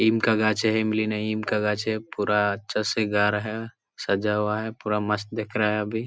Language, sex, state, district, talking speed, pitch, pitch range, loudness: Hindi, male, Jharkhand, Sahebganj, 235 wpm, 110 Hz, 105-110 Hz, -25 LUFS